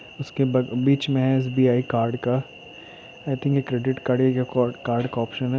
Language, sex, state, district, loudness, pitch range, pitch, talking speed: Hindi, male, Chhattisgarh, Raigarh, -23 LUFS, 125-140 Hz, 130 Hz, 195 wpm